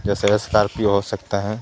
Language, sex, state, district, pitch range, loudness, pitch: Hindi, male, Jharkhand, Garhwa, 100-105 Hz, -20 LUFS, 105 Hz